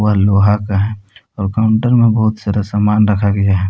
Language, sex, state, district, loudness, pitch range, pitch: Hindi, male, Jharkhand, Palamu, -14 LUFS, 100-110 Hz, 105 Hz